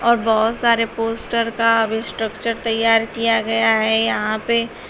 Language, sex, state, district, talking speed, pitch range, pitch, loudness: Hindi, female, Uttar Pradesh, Shamli, 145 wpm, 225-230 Hz, 225 Hz, -18 LUFS